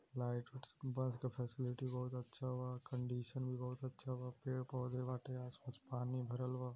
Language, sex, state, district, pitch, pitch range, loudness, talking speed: Hindi, male, Uttar Pradesh, Gorakhpur, 125 Hz, 125-130 Hz, -45 LUFS, 160 wpm